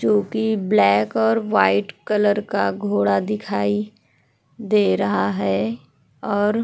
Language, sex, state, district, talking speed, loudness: Hindi, female, Uttar Pradesh, Hamirpur, 115 wpm, -20 LUFS